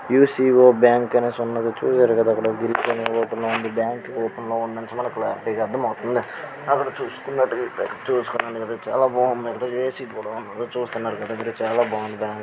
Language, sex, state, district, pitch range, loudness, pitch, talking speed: Telugu, male, Karnataka, Belgaum, 115-125 Hz, -22 LUFS, 115 Hz, 120 wpm